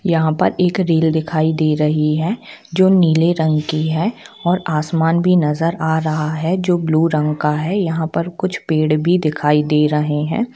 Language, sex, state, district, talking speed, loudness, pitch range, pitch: Hindi, female, Jharkhand, Jamtara, 195 wpm, -17 LUFS, 155-180 Hz, 160 Hz